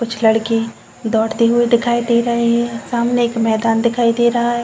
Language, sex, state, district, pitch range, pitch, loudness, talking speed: Hindi, female, Uttar Pradesh, Jalaun, 225-235 Hz, 235 Hz, -16 LUFS, 195 wpm